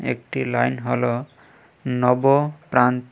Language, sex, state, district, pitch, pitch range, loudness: Bengali, male, Tripura, West Tripura, 125 Hz, 125-140 Hz, -21 LUFS